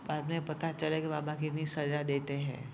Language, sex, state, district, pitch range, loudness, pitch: Hindi, male, Jharkhand, Jamtara, 145-155 Hz, -35 LUFS, 150 Hz